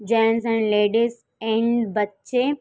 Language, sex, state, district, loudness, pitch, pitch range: Hindi, female, Jharkhand, Sahebganj, -22 LUFS, 225 Hz, 210-235 Hz